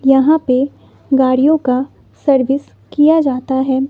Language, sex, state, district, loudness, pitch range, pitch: Hindi, female, Bihar, West Champaran, -14 LUFS, 260-290 Hz, 270 Hz